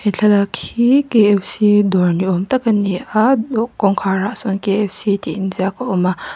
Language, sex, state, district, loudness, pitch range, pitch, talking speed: Mizo, female, Mizoram, Aizawl, -16 LUFS, 190-225 Hz, 205 Hz, 235 wpm